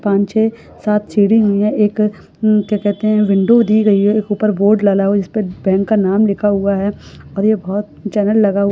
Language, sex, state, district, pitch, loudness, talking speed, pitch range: Hindi, female, Rajasthan, Churu, 205 Hz, -15 LUFS, 200 wpm, 200-215 Hz